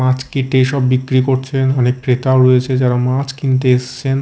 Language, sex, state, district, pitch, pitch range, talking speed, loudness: Bengali, male, Odisha, Khordha, 130 Hz, 130-135 Hz, 170 wpm, -15 LUFS